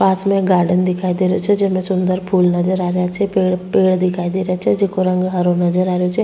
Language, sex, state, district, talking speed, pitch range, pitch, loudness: Rajasthani, female, Rajasthan, Churu, 270 wpm, 180-190 Hz, 185 Hz, -16 LUFS